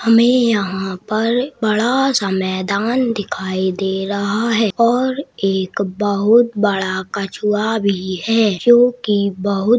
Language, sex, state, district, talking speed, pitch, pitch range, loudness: Hindi, male, Uttarakhand, Tehri Garhwal, 125 wpm, 210 Hz, 195-230 Hz, -17 LUFS